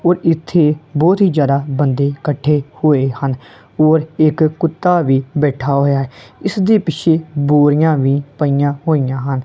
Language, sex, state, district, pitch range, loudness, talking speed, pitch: Punjabi, female, Punjab, Kapurthala, 140-160 Hz, -15 LUFS, 150 wpm, 150 Hz